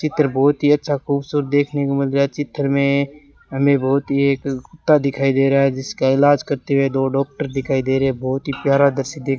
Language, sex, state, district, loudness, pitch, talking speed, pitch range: Hindi, male, Rajasthan, Bikaner, -18 LUFS, 140 Hz, 230 wpm, 135-145 Hz